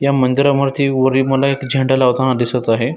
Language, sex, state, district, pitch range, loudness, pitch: Marathi, male, Maharashtra, Dhule, 130-140 Hz, -15 LUFS, 135 Hz